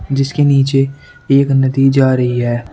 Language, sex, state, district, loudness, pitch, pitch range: Hindi, male, Uttar Pradesh, Shamli, -13 LUFS, 135 Hz, 130-135 Hz